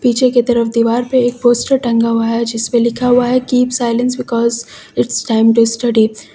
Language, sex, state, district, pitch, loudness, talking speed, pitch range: Hindi, female, Uttar Pradesh, Lucknow, 235 Hz, -14 LUFS, 210 wpm, 230-250 Hz